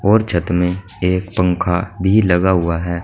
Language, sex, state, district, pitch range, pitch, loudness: Hindi, male, Uttar Pradesh, Saharanpur, 90-95 Hz, 90 Hz, -17 LUFS